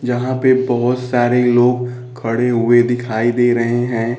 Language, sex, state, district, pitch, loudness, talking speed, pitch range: Hindi, male, Bihar, Kaimur, 120 Hz, -15 LUFS, 160 wpm, 120-125 Hz